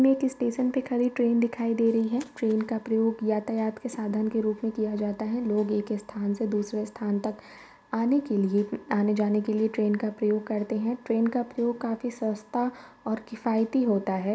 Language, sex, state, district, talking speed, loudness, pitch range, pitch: Hindi, female, Uttar Pradesh, Varanasi, 205 wpm, -27 LUFS, 210-235 Hz, 220 Hz